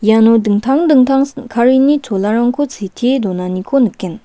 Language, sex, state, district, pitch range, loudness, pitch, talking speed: Garo, female, Meghalaya, West Garo Hills, 205-270 Hz, -13 LUFS, 235 Hz, 115 wpm